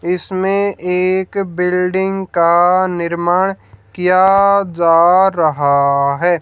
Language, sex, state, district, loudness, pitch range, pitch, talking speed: Hindi, female, Haryana, Jhajjar, -14 LUFS, 170-190 Hz, 180 Hz, 85 wpm